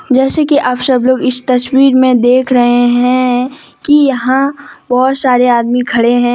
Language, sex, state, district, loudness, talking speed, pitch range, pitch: Hindi, female, Jharkhand, Deoghar, -10 LUFS, 170 wpm, 245-270 Hz, 255 Hz